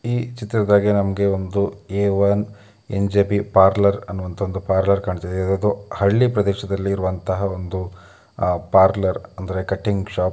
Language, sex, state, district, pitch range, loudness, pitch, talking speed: Kannada, male, Karnataka, Mysore, 95-100 Hz, -20 LUFS, 100 Hz, 115 wpm